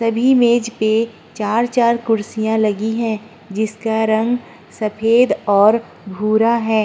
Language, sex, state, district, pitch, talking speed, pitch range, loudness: Hindi, female, Uttar Pradesh, Muzaffarnagar, 220 Hz, 115 wpm, 215-230 Hz, -17 LUFS